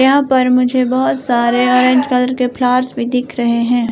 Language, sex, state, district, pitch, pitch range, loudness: Hindi, female, Himachal Pradesh, Shimla, 250 Hz, 245-255 Hz, -13 LUFS